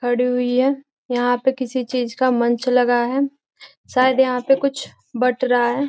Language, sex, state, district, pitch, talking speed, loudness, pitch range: Hindi, female, Bihar, Gopalganj, 250 Hz, 195 wpm, -19 LUFS, 245-265 Hz